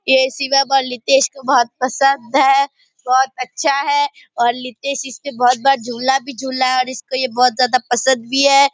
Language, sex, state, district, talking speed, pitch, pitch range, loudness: Hindi, female, Bihar, Purnia, 205 wpm, 265 Hz, 255-275 Hz, -16 LUFS